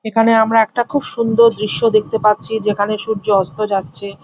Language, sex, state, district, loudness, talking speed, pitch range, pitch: Bengali, female, West Bengal, Jhargram, -16 LUFS, 170 wpm, 205-225 Hz, 220 Hz